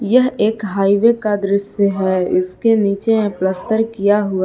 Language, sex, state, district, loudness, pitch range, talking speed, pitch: Hindi, female, Jharkhand, Palamu, -16 LUFS, 195-220 Hz, 160 wpm, 205 Hz